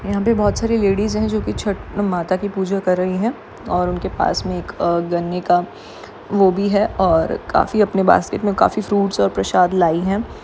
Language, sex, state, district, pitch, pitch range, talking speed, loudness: Hindi, female, Maharashtra, Solapur, 195 Hz, 180-205 Hz, 205 wpm, -18 LUFS